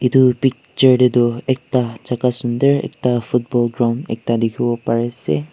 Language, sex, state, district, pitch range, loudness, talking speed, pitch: Nagamese, male, Nagaland, Kohima, 120-130 Hz, -17 LUFS, 150 wpm, 125 Hz